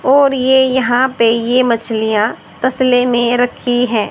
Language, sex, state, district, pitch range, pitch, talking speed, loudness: Hindi, male, Haryana, Charkhi Dadri, 235-260 Hz, 245 Hz, 145 wpm, -13 LUFS